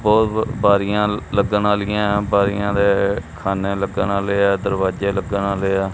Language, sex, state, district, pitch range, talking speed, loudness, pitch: Punjabi, male, Punjab, Kapurthala, 100-105 Hz, 140 wpm, -19 LUFS, 100 Hz